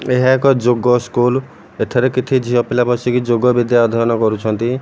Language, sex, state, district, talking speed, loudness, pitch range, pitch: Odia, male, Odisha, Malkangiri, 160 wpm, -15 LUFS, 120-125 Hz, 125 Hz